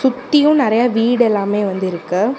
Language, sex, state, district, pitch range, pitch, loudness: Tamil, female, Tamil Nadu, Namakkal, 200-265 Hz, 230 Hz, -15 LUFS